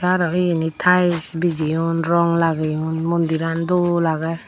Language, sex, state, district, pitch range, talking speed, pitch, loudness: Chakma, female, Tripura, Dhalai, 160-175 Hz, 120 wpm, 165 Hz, -19 LUFS